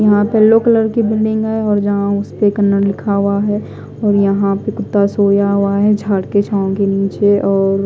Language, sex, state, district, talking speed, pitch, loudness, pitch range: Hindi, female, Odisha, Khordha, 205 wpm, 205 Hz, -14 LUFS, 200-210 Hz